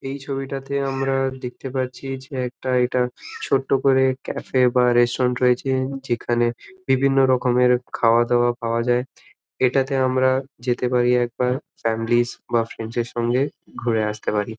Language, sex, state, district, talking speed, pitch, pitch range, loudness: Bengali, male, West Bengal, Malda, 150 wpm, 125 Hz, 120-135 Hz, -22 LUFS